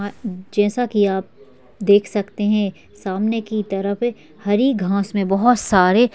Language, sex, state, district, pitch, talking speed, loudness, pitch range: Hindi, female, Uttar Pradesh, Hamirpur, 205 Hz, 135 wpm, -19 LUFS, 195-215 Hz